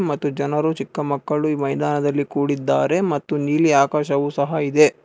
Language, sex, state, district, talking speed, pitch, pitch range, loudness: Kannada, male, Karnataka, Bangalore, 130 wpm, 145 Hz, 140-150 Hz, -20 LUFS